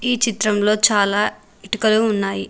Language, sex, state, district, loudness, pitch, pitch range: Telugu, female, Telangana, Mahabubabad, -18 LUFS, 210 Hz, 205-220 Hz